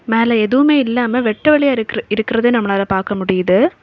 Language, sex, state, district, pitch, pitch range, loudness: Tamil, female, Tamil Nadu, Kanyakumari, 230 Hz, 205-250 Hz, -15 LUFS